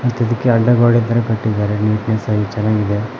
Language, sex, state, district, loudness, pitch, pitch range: Kannada, male, Karnataka, Koppal, -16 LUFS, 110 Hz, 105-120 Hz